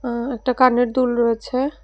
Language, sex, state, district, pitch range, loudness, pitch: Bengali, female, Tripura, West Tripura, 240-255 Hz, -19 LUFS, 250 Hz